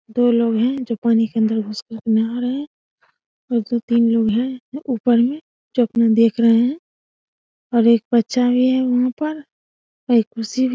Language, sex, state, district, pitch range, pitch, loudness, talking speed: Hindi, female, Bihar, Samastipur, 230-255 Hz, 235 Hz, -18 LUFS, 185 wpm